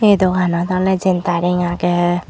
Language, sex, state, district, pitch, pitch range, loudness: Chakma, female, Tripura, Dhalai, 180 Hz, 175-185 Hz, -16 LUFS